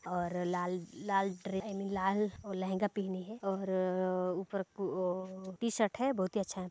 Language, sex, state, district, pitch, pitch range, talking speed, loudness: Hindi, female, Chhattisgarh, Balrampur, 190 Hz, 185-200 Hz, 160 wpm, -36 LUFS